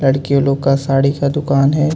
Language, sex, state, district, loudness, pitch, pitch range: Hindi, male, Jharkhand, Ranchi, -15 LUFS, 140 Hz, 135-140 Hz